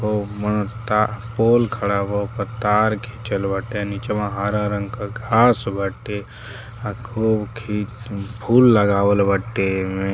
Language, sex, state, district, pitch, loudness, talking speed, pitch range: Hindi, male, Uttar Pradesh, Deoria, 105 Hz, -20 LUFS, 140 wpm, 100-115 Hz